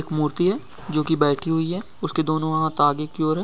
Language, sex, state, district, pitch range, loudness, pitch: Hindi, male, Bihar, Begusarai, 150-165 Hz, -23 LUFS, 155 Hz